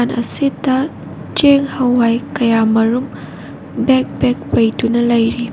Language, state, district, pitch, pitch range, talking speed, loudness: Manipuri, Manipur, Imphal West, 240 Hz, 235-260 Hz, 100 wpm, -15 LUFS